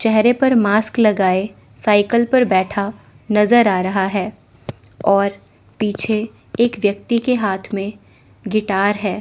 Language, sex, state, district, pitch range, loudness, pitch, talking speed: Hindi, female, Chandigarh, Chandigarh, 200-225 Hz, -17 LUFS, 210 Hz, 130 wpm